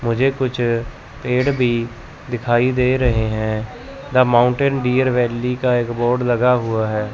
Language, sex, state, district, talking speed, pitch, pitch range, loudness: Hindi, male, Chandigarh, Chandigarh, 150 wpm, 120 Hz, 115-125 Hz, -18 LUFS